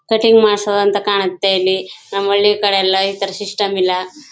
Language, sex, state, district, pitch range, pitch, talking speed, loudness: Kannada, female, Karnataka, Chamarajanagar, 190-205 Hz, 200 Hz, 165 wpm, -15 LUFS